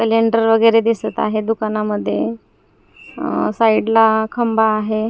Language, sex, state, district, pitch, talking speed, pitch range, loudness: Marathi, female, Maharashtra, Gondia, 220 Hz, 105 wpm, 215-225 Hz, -16 LUFS